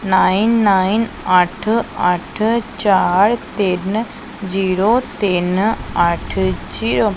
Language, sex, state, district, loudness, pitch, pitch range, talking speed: Punjabi, female, Punjab, Pathankot, -16 LUFS, 195 Hz, 185-220 Hz, 90 wpm